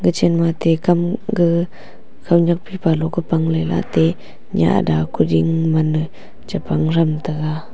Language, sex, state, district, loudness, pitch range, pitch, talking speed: Wancho, female, Arunachal Pradesh, Longding, -18 LUFS, 155-170 Hz, 160 Hz, 125 wpm